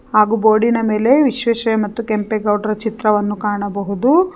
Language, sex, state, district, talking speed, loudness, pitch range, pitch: Kannada, female, Karnataka, Bangalore, 125 wpm, -16 LUFS, 210-230 Hz, 215 Hz